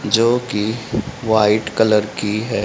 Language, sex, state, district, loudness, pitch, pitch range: Hindi, male, Haryana, Rohtak, -18 LUFS, 110 Hz, 105-115 Hz